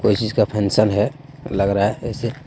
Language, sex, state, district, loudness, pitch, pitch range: Hindi, male, Jharkhand, Deoghar, -20 LUFS, 105 Hz, 105-120 Hz